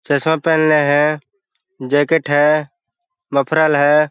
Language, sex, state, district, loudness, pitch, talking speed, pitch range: Hindi, male, Bihar, Jahanabad, -15 LUFS, 150 Hz, 115 wpm, 145-160 Hz